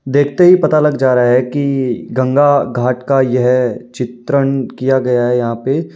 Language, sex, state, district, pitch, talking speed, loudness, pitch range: Hindi, male, Uttar Pradesh, Varanasi, 130 Hz, 180 wpm, -14 LUFS, 125-140 Hz